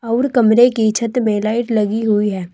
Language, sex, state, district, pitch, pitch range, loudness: Hindi, female, Uttar Pradesh, Saharanpur, 220 Hz, 210-240 Hz, -15 LUFS